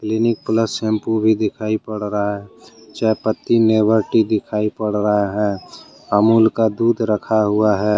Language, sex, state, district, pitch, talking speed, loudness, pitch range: Hindi, male, Jharkhand, Deoghar, 110 Hz, 165 wpm, -18 LUFS, 105-110 Hz